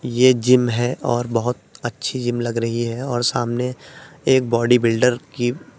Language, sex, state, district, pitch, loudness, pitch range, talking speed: Hindi, male, Uttar Pradesh, Etah, 120 Hz, -20 LUFS, 120-130 Hz, 165 wpm